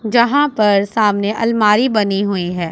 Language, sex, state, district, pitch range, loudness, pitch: Hindi, female, Punjab, Pathankot, 200-230 Hz, -15 LUFS, 210 Hz